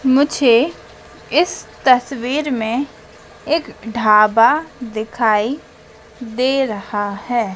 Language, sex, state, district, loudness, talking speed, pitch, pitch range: Hindi, female, Madhya Pradesh, Dhar, -17 LUFS, 80 wpm, 240 Hz, 220-265 Hz